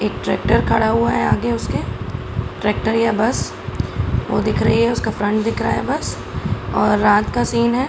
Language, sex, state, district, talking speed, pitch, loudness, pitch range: Hindi, female, Bihar, Araria, 200 wpm, 220 Hz, -19 LUFS, 210-235 Hz